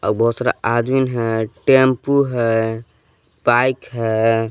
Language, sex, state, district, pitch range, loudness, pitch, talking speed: Hindi, male, Jharkhand, Palamu, 115-130 Hz, -17 LUFS, 115 Hz, 120 wpm